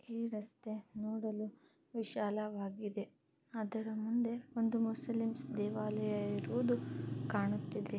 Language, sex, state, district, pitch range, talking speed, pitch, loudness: Kannada, female, Karnataka, Chamarajanagar, 215-230 Hz, 85 wpm, 220 Hz, -39 LUFS